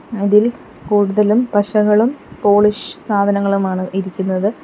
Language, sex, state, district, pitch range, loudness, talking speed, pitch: Malayalam, female, Kerala, Kollam, 200-215 Hz, -16 LUFS, 80 wpm, 205 Hz